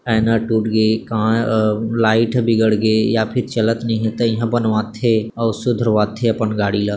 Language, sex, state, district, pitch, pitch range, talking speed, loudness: Chhattisgarhi, male, Chhattisgarh, Bilaspur, 110 Hz, 110-115 Hz, 180 wpm, -17 LUFS